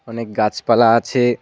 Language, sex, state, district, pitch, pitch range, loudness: Bengali, male, West Bengal, Cooch Behar, 115 Hz, 115-120 Hz, -16 LUFS